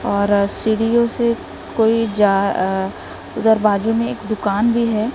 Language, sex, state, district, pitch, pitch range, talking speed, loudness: Hindi, female, Maharashtra, Gondia, 220 Hz, 200-230 Hz, 150 wpm, -18 LUFS